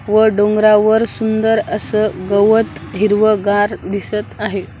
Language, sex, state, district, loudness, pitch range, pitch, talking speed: Marathi, female, Maharashtra, Washim, -15 LUFS, 205-220 Hz, 215 Hz, 100 wpm